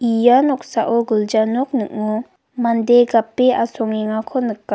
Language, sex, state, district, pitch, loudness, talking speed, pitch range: Garo, female, Meghalaya, West Garo Hills, 230 Hz, -17 LUFS, 115 wpm, 220-250 Hz